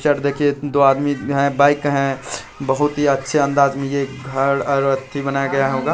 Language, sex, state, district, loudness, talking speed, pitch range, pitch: Hindi, male, Bihar, Saharsa, -18 LUFS, 180 wpm, 135-145 Hz, 140 Hz